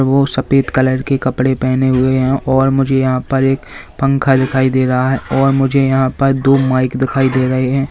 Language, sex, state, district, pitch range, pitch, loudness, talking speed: Hindi, male, Uttar Pradesh, Lalitpur, 130-135 Hz, 135 Hz, -14 LUFS, 210 wpm